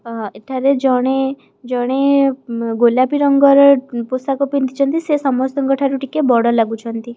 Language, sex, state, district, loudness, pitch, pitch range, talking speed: Odia, female, Odisha, Khordha, -16 LUFS, 265 Hz, 240-275 Hz, 125 wpm